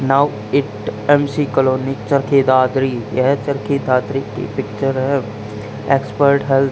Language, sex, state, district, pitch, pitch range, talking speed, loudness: Hindi, male, Haryana, Charkhi Dadri, 135 Hz, 125-140 Hz, 135 wpm, -17 LUFS